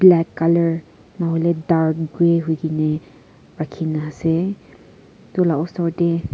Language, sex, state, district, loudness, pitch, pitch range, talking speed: Nagamese, female, Nagaland, Kohima, -20 LUFS, 165 Hz, 160-170 Hz, 140 wpm